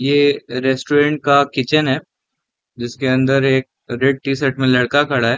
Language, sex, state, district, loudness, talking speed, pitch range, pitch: Hindi, male, Chhattisgarh, Raigarh, -16 LUFS, 180 wpm, 130-140 Hz, 135 Hz